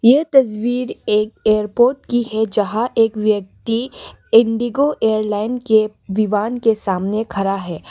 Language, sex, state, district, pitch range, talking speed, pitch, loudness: Hindi, female, Arunachal Pradesh, Lower Dibang Valley, 210-240 Hz, 130 wpm, 220 Hz, -17 LUFS